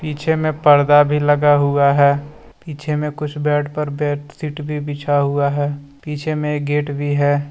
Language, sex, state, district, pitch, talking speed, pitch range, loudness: Hindi, male, Jharkhand, Deoghar, 145 Hz, 175 wpm, 145-150 Hz, -17 LUFS